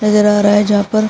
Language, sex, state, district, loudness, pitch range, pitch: Hindi, female, Uttar Pradesh, Jyotiba Phule Nagar, -12 LUFS, 205-210 Hz, 210 Hz